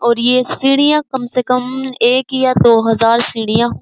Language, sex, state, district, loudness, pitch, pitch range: Hindi, female, Uttar Pradesh, Jyotiba Phule Nagar, -13 LUFS, 250 Hz, 235-260 Hz